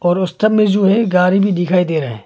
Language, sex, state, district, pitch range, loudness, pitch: Hindi, male, Arunachal Pradesh, Longding, 175-200 Hz, -14 LUFS, 185 Hz